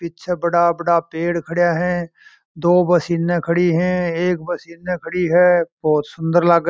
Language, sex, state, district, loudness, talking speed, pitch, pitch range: Marwari, male, Rajasthan, Churu, -18 LUFS, 180 wpm, 170 Hz, 170-175 Hz